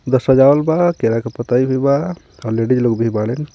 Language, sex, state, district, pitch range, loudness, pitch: Bhojpuri, male, Jharkhand, Palamu, 115-140 Hz, -15 LUFS, 130 Hz